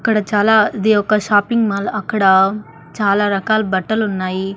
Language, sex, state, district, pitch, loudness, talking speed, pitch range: Telugu, female, Andhra Pradesh, Annamaya, 205 Hz, -15 LUFS, 130 wpm, 195-215 Hz